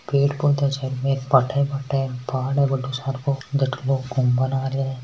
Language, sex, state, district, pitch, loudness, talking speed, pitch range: Hindi, male, Rajasthan, Nagaur, 135 Hz, -22 LUFS, 200 wpm, 130-140 Hz